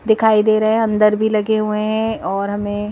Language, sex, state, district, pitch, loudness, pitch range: Hindi, female, Madhya Pradesh, Bhopal, 215 Hz, -16 LUFS, 210-220 Hz